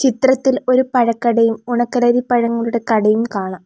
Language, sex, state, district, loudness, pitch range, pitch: Malayalam, female, Kerala, Kollam, -16 LUFS, 230-250 Hz, 240 Hz